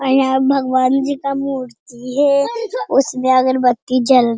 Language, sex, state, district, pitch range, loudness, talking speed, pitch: Hindi, female, Bihar, Jamui, 255-275 Hz, -16 LUFS, 165 wpm, 265 Hz